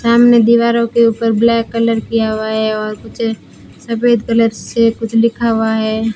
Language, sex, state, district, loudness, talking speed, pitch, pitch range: Hindi, female, Rajasthan, Bikaner, -14 LUFS, 175 wpm, 230 Hz, 220-235 Hz